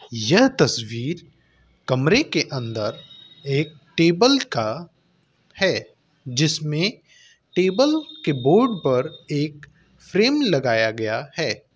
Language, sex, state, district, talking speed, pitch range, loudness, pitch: Hindi, male, Uttar Pradesh, Hamirpur, 95 wpm, 130-180 Hz, -21 LUFS, 155 Hz